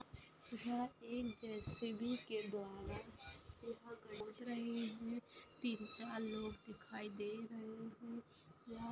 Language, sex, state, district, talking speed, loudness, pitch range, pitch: Hindi, female, Maharashtra, Nagpur, 110 wpm, -47 LUFS, 215-235 Hz, 225 Hz